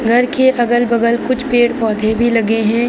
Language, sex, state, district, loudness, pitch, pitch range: Hindi, female, Uttar Pradesh, Lucknow, -14 LUFS, 240 Hz, 230-245 Hz